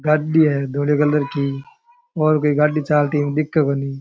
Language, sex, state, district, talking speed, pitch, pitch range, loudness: Rajasthani, male, Rajasthan, Churu, 165 wpm, 150 Hz, 140-155 Hz, -18 LUFS